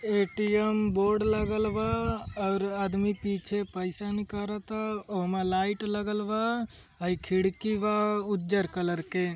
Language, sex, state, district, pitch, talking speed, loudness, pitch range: Hindi, male, Uttar Pradesh, Gorakhpur, 205 Hz, 115 wpm, -29 LUFS, 190-210 Hz